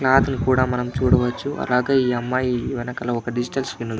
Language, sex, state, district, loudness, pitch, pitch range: Telugu, male, Andhra Pradesh, Anantapur, -21 LUFS, 125 Hz, 120-130 Hz